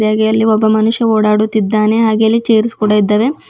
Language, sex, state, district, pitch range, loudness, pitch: Kannada, female, Karnataka, Bidar, 215-225 Hz, -12 LUFS, 220 Hz